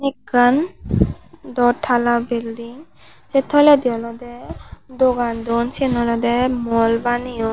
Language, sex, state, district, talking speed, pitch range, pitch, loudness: Chakma, male, Tripura, Unakoti, 105 wpm, 235-260 Hz, 245 Hz, -18 LUFS